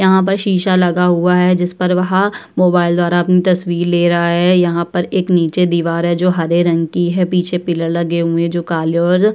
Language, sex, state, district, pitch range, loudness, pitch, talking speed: Hindi, female, Uttar Pradesh, Budaun, 170-180 Hz, -14 LUFS, 175 Hz, 225 wpm